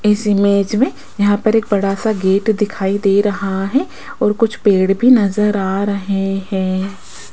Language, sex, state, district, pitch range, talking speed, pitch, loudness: Hindi, female, Rajasthan, Jaipur, 195-210 Hz, 170 wpm, 200 Hz, -16 LUFS